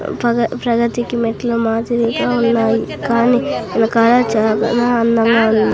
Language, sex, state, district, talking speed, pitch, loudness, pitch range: Telugu, female, Andhra Pradesh, Sri Satya Sai, 75 wpm, 235 Hz, -15 LUFS, 225-240 Hz